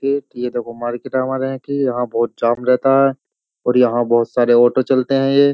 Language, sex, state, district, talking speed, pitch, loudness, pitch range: Hindi, male, Uttar Pradesh, Jyotiba Phule Nagar, 205 wpm, 125 Hz, -17 LUFS, 120-135 Hz